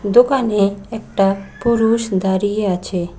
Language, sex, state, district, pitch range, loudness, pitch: Bengali, female, West Bengal, Cooch Behar, 195-225 Hz, -17 LUFS, 200 Hz